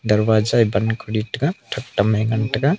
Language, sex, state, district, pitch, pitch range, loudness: Wancho, male, Arunachal Pradesh, Longding, 110 Hz, 110-120 Hz, -20 LUFS